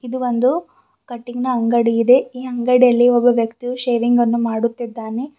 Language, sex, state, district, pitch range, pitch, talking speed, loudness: Kannada, female, Karnataka, Bidar, 235-250 Hz, 245 Hz, 145 wpm, -17 LUFS